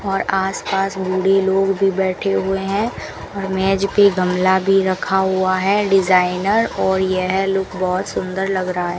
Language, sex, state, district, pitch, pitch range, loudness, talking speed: Hindi, female, Rajasthan, Bikaner, 190 Hz, 185-195 Hz, -18 LUFS, 175 wpm